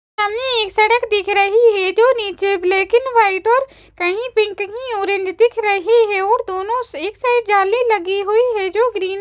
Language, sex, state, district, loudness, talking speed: Hindi, female, Chhattisgarh, Raipur, -16 LUFS, 190 wpm